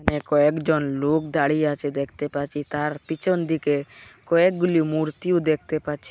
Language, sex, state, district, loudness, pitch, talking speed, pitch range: Bengali, male, Assam, Hailakandi, -23 LUFS, 150 Hz, 120 wpm, 145-160 Hz